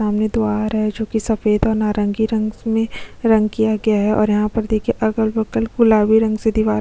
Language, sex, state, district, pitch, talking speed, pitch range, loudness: Hindi, female, Chhattisgarh, Kabirdham, 220 Hz, 220 wpm, 215-220 Hz, -18 LUFS